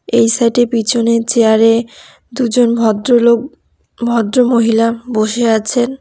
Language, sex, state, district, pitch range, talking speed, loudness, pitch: Bengali, female, West Bengal, Cooch Behar, 225-240 Hz, 90 wpm, -13 LUFS, 235 Hz